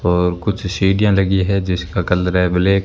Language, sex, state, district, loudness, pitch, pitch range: Hindi, male, Rajasthan, Bikaner, -17 LUFS, 95 Hz, 90-100 Hz